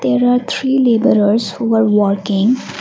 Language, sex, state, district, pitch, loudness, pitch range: English, female, Assam, Kamrup Metropolitan, 225 Hz, -14 LUFS, 205-245 Hz